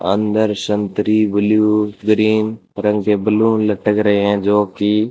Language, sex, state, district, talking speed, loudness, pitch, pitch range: Hindi, male, Rajasthan, Bikaner, 140 wpm, -16 LUFS, 105 Hz, 105-110 Hz